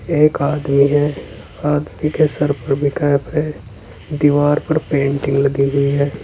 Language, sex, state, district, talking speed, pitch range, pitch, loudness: Hindi, male, Uttar Pradesh, Saharanpur, 155 wpm, 140-150 Hz, 145 Hz, -17 LUFS